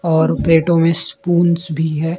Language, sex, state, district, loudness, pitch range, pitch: Hindi, male, Maharashtra, Gondia, -15 LUFS, 160-170 Hz, 165 Hz